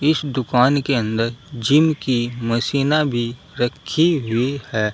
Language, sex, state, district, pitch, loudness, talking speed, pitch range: Hindi, male, Uttar Pradesh, Saharanpur, 130 Hz, -19 LUFS, 135 wpm, 120-145 Hz